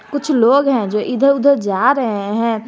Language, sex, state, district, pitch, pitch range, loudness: Hindi, female, Jharkhand, Garhwa, 245 Hz, 215-275 Hz, -15 LUFS